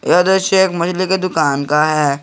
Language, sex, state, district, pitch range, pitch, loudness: Hindi, male, Jharkhand, Garhwa, 150-190 Hz, 175 Hz, -15 LUFS